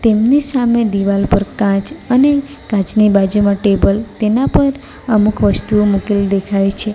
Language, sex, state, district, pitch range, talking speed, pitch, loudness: Gujarati, female, Gujarat, Valsad, 200-235 Hz, 140 wpm, 210 Hz, -14 LUFS